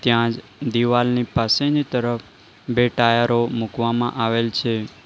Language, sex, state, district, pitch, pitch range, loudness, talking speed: Gujarati, male, Gujarat, Valsad, 120 Hz, 115-120 Hz, -20 LUFS, 105 wpm